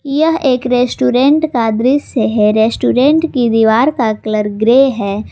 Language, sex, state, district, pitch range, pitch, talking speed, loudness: Hindi, female, Jharkhand, Ranchi, 220-275 Hz, 245 Hz, 145 wpm, -12 LUFS